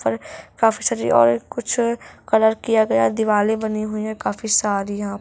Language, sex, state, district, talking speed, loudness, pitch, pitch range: Hindi, female, Chhattisgarh, Korba, 185 wpm, -19 LUFS, 215 Hz, 200-220 Hz